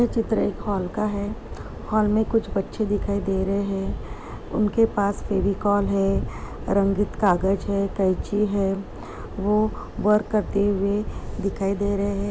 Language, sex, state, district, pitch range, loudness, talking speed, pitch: Hindi, female, Uttar Pradesh, Jyotiba Phule Nagar, 195-210 Hz, -24 LUFS, 150 wpm, 200 Hz